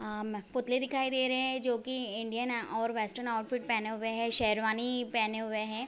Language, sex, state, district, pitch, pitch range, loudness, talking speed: Hindi, female, Uttar Pradesh, Varanasi, 230 Hz, 220-250 Hz, -32 LUFS, 195 wpm